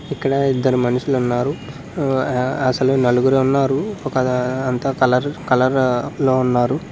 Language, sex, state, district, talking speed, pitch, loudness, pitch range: Telugu, male, Andhra Pradesh, Srikakulam, 120 wpm, 130 Hz, -18 LUFS, 125-135 Hz